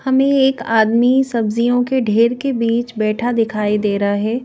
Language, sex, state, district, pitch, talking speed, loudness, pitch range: Hindi, female, Madhya Pradesh, Bhopal, 235 Hz, 175 wpm, -16 LUFS, 215-255 Hz